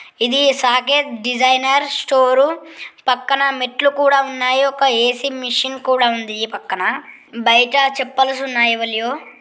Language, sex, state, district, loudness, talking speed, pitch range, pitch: Telugu, female, Andhra Pradesh, Guntur, -16 LUFS, 120 wpm, 245-275 Hz, 260 Hz